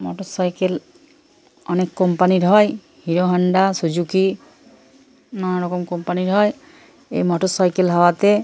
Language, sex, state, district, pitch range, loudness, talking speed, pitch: Bengali, female, West Bengal, Purulia, 180-210 Hz, -18 LUFS, 115 wpm, 185 Hz